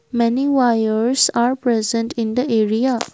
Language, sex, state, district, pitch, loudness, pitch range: English, female, Assam, Kamrup Metropolitan, 235 Hz, -18 LUFS, 230-250 Hz